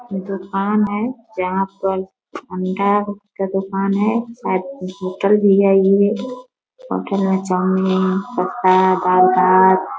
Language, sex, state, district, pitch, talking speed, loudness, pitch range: Hindi, female, Bihar, Begusarai, 195 Hz, 110 wpm, -17 LUFS, 185-205 Hz